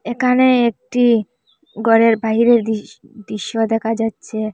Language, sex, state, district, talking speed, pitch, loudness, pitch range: Bengali, female, Assam, Hailakandi, 90 wpm, 225 Hz, -16 LUFS, 220-240 Hz